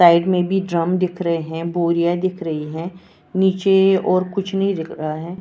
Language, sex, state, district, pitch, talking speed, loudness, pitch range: Hindi, female, Maharashtra, Washim, 175 Hz, 200 wpm, -19 LUFS, 170-190 Hz